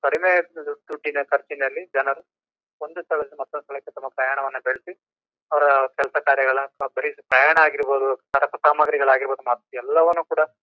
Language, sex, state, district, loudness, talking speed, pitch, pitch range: Kannada, male, Karnataka, Chamarajanagar, -21 LUFS, 125 wpm, 140 Hz, 135-155 Hz